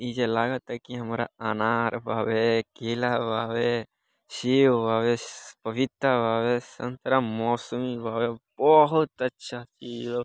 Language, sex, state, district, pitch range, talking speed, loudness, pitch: Bhojpuri, male, Bihar, Gopalganj, 115-125 Hz, 110 wpm, -26 LUFS, 120 Hz